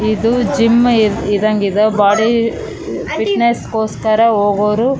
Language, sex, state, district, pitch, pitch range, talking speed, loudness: Kannada, female, Karnataka, Raichur, 220 Hz, 210-230 Hz, 110 wpm, -14 LUFS